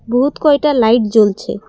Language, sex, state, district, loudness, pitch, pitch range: Bengali, female, Assam, Kamrup Metropolitan, -13 LUFS, 240 Hz, 225-285 Hz